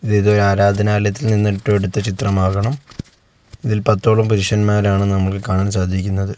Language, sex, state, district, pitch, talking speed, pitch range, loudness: Malayalam, male, Kerala, Kozhikode, 105 Hz, 105 wpm, 100-110 Hz, -16 LUFS